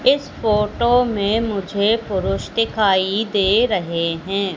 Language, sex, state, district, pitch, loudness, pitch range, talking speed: Hindi, female, Madhya Pradesh, Katni, 205 Hz, -19 LUFS, 195-225 Hz, 120 wpm